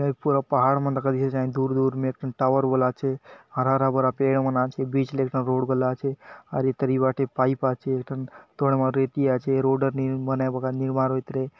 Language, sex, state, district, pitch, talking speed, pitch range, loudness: Halbi, male, Chhattisgarh, Bastar, 130 Hz, 255 wpm, 130-135 Hz, -24 LUFS